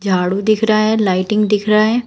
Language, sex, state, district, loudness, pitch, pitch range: Hindi, female, Uttar Pradesh, Shamli, -15 LUFS, 215 Hz, 195-215 Hz